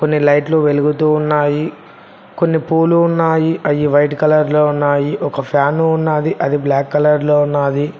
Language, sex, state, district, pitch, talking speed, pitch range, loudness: Telugu, male, Telangana, Mahabubabad, 150 Hz, 150 wpm, 145-160 Hz, -14 LUFS